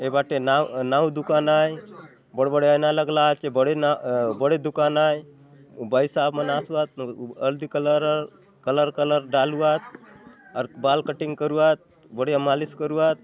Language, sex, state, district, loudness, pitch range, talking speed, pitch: Halbi, male, Chhattisgarh, Bastar, -22 LUFS, 140-155 Hz, 150 wpm, 150 Hz